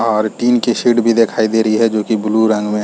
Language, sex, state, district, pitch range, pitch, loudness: Hindi, male, Chhattisgarh, Raigarh, 110-115 Hz, 110 Hz, -14 LUFS